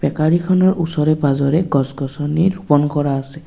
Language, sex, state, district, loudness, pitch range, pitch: Assamese, male, Assam, Kamrup Metropolitan, -17 LUFS, 140-165 Hz, 150 Hz